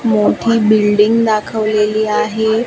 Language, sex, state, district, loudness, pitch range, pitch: Marathi, female, Maharashtra, Washim, -13 LUFS, 210-225 Hz, 215 Hz